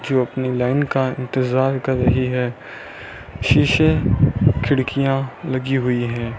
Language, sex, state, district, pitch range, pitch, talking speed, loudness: Hindi, male, Rajasthan, Bikaner, 125-135 Hz, 130 Hz, 120 wpm, -19 LUFS